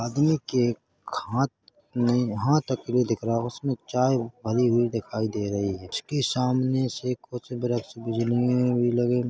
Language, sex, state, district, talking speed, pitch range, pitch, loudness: Hindi, male, Chhattisgarh, Korba, 160 wpm, 115-125 Hz, 120 Hz, -26 LUFS